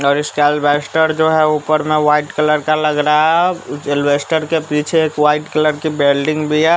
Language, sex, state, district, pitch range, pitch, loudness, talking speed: Hindi, male, Bihar, West Champaran, 150-155 Hz, 150 Hz, -15 LUFS, 210 wpm